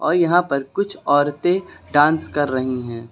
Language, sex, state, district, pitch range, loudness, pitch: Hindi, male, Uttar Pradesh, Lucknow, 130-175 Hz, -19 LUFS, 145 Hz